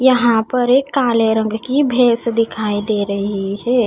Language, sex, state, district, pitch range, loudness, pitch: Hindi, female, Haryana, Charkhi Dadri, 215-250 Hz, -16 LUFS, 230 Hz